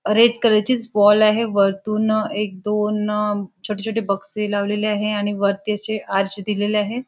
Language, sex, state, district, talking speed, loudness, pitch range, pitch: Marathi, female, Maharashtra, Nagpur, 160 wpm, -20 LUFS, 205-215 Hz, 210 Hz